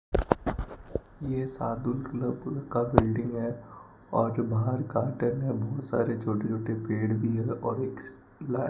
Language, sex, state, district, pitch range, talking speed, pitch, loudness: Hindi, male, Rajasthan, Bikaner, 115-125 Hz, 140 wpm, 120 Hz, -30 LUFS